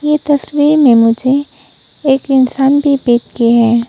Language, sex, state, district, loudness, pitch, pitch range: Hindi, female, Arunachal Pradesh, Papum Pare, -11 LUFS, 270 Hz, 235-290 Hz